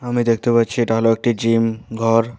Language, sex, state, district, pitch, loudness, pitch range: Bengali, male, West Bengal, Alipurduar, 115 Hz, -18 LUFS, 115-120 Hz